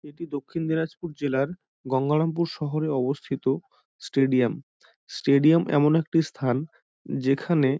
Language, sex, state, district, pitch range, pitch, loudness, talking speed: Bengali, male, West Bengal, Dakshin Dinajpur, 135-160 Hz, 150 Hz, -25 LUFS, 100 wpm